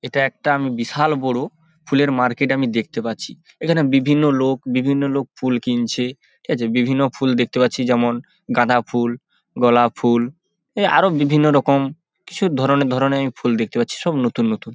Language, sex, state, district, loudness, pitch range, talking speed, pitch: Bengali, male, West Bengal, Paschim Medinipur, -19 LUFS, 120-145 Hz, 170 wpm, 135 Hz